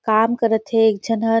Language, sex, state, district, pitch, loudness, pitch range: Surgujia, female, Chhattisgarh, Sarguja, 225 Hz, -18 LUFS, 220-225 Hz